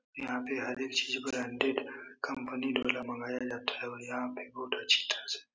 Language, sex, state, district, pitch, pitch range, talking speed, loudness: Hindi, male, Bihar, Supaul, 130 Hz, 125-130 Hz, 205 wpm, -34 LUFS